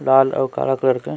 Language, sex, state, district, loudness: Surgujia, male, Chhattisgarh, Sarguja, -18 LUFS